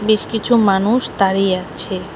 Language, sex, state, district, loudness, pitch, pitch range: Bengali, female, West Bengal, Alipurduar, -16 LUFS, 200 Hz, 190-225 Hz